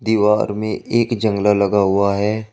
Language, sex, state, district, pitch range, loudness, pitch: Hindi, male, Uttar Pradesh, Shamli, 100-110 Hz, -17 LUFS, 105 Hz